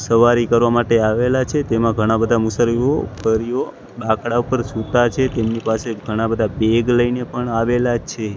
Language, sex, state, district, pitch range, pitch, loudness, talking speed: Gujarati, male, Gujarat, Gandhinagar, 110-120 Hz, 115 Hz, -18 LUFS, 160 wpm